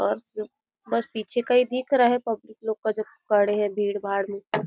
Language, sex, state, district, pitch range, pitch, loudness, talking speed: Hindi, female, Chhattisgarh, Rajnandgaon, 210-245 Hz, 220 Hz, -25 LUFS, 190 wpm